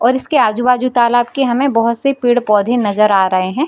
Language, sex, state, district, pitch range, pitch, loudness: Hindi, female, Bihar, Jamui, 215-255 Hz, 240 Hz, -13 LUFS